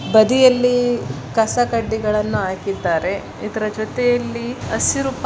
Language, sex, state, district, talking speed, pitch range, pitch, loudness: Kannada, male, Karnataka, Mysore, 80 wpm, 215-245 Hz, 235 Hz, -18 LUFS